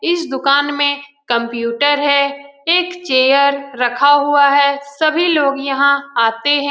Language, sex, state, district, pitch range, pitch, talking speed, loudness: Hindi, female, Bihar, Lakhisarai, 275-290 Hz, 280 Hz, 135 wpm, -14 LUFS